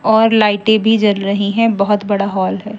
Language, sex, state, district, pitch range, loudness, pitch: Hindi, female, Haryana, Jhajjar, 200-220 Hz, -14 LUFS, 210 Hz